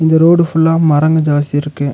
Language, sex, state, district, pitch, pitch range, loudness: Tamil, male, Tamil Nadu, Nilgiris, 160 Hz, 145-160 Hz, -12 LUFS